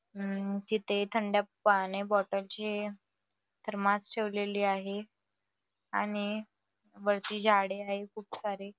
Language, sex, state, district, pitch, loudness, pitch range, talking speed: Marathi, female, Maharashtra, Nagpur, 205 Hz, -32 LUFS, 195-210 Hz, 100 wpm